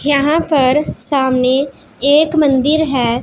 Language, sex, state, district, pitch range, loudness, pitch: Hindi, female, Punjab, Pathankot, 260-300 Hz, -14 LUFS, 280 Hz